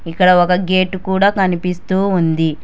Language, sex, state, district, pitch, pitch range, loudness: Telugu, female, Telangana, Hyderabad, 180 Hz, 175-190 Hz, -15 LUFS